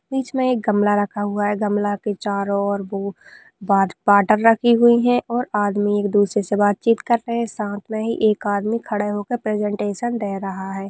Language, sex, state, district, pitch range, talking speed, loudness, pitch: Hindi, female, Bihar, Madhepura, 205-230 Hz, 205 wpm, -20 LUFS, 205 Hz